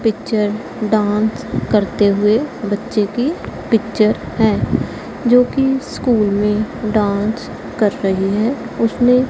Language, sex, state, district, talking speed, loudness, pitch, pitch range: Hindi, female, Punjab, Pathankot, 110 wpm, -17 LUFS, 215 Hz, 210-240 Hz